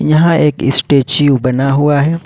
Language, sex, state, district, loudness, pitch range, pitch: Hindi, male, Jharkhand, Ranchi, -11 LUFS, 135-155 Hz, 145 Hz